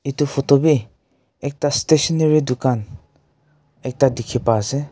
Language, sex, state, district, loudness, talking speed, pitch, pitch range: Nagamese, male, Nagaland, Kohima, -18 LUFS, 120 wpm, 140 Hz, 125-150 Hz